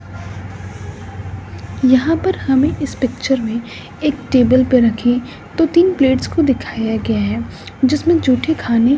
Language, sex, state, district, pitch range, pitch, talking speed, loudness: Hindi, female, Bihar, West Champaran, 205-280 Hz, 250 Hz, 135 wpm, -16 LUFS